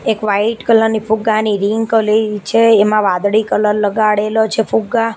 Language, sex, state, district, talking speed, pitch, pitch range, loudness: Gujarati, female, Gujarat, Gandhinagar, 160 wpm, 220 Hz, 210-225 Hz, -14 LUFS